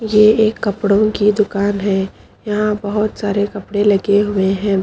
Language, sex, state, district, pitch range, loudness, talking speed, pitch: Hindi, female, Haryana, Charkhi Dadri, 200-210 Hz, -16 LUFS, 160 wpm, 205 Hz